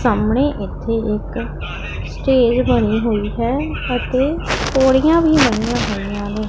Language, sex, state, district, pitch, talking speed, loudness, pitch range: Punjabi, female, Punjab, Pathankot, 240 Hz, 120 wpm, -17 LUFS, 215-265 Hz